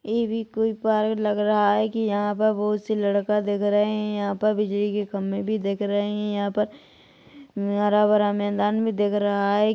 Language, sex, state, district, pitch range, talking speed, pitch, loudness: Hindi, female, Chhattisgarh, Bilaspur, 205-215 Hz, 210 wpm, 210 Hz, -23 LUFS